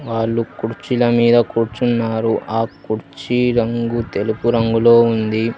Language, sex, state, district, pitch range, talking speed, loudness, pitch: Telugu, male, Telangana, Hyderabad, 110-120 Hz, 105 wpm, -17 LUFS, 115 Hz